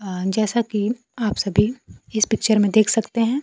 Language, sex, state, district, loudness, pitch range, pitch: Hindi, female, Bihar, Kaimur, -20 LUFS, 210-230 Hz, 220 Hz